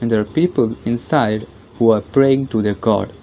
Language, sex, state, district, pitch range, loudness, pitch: English, female, Karnataka, Bangalore, 110-125 Hz, -17 LUFS, 115 Hz